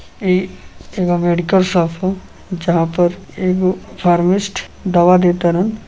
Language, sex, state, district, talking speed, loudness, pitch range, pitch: Bhojpuri, male, Uttar Pradesh, Gorakhpur, 110 wpm, -16 LUFS, 175-185 Hz, 180 Hz